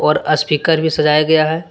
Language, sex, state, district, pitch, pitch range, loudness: Hindi, male, Jharkhand, Deoghar, 155 Hz, 150-160 Hz, -14 LUFS